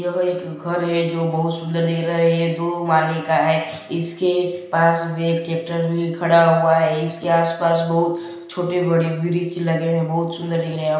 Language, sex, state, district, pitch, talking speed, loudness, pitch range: Hindi, male, Chhattisgarh, Balrampur, 165 Hz, 165 wpm, -20 LUFS, 165-170 Hz